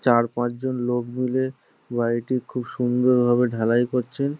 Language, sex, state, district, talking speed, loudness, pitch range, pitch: Bengali, male, West Bengal, Jhargram, 150 wpm, -23 LUFS, 120-130 Hz, 125 Hz